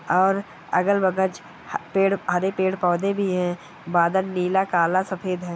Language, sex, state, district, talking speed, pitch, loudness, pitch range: Hindi, male, Bihar, Kishanganj, 140 wpm, 185 Hz, -23 LUFS, 180-190 Hz